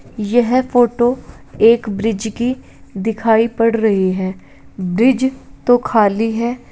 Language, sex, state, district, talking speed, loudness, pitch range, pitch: Hindi, male, Bihar, Saharsa, 135 wpm, -16 LUFS, 215-245 Hz, 230 Hz